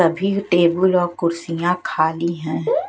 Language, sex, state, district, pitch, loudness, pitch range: Hindi, female, Chhattisgarh, Raipur, 170 Hz, -19 LUFS, 170-180 Hz